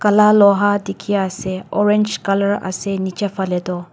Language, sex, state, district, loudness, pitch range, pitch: Nagamese, female, Nagaland, Dimapur, -17 LUFS, 190-205 Hz, 195 Hz